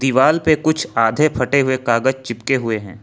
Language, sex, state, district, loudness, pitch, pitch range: Hindi, male, Jharkhand, Ranchi, -17 LUFS, 130 Hz, 115-150 Hz